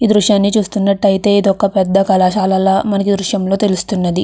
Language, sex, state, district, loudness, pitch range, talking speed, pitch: Telugu, female, Andhra Pradesh, Krishna, -13 LUFS, 190-205 Hz, 125 wpm, 200 Hz